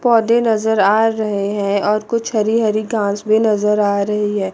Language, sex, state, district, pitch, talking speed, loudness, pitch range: Hindi, female, Chandigarh, Chandigarh, 215 Hz, 200 wpm, -16 LUFS, 205-225 Hz